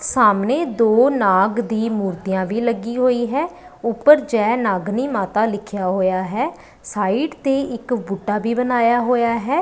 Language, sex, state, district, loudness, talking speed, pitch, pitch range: Punjabi, female, Punjab, Pathankot, -19 LUFS, 150 wpm, 235 Hz, 205-250 Hz